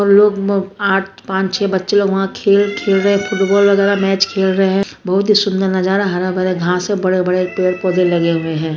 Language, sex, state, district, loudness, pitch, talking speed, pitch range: Hindi, female, Chhattisgarh, Bastar, -15 LUFS, 195 Hz, 220 wpm, 185-200 Hz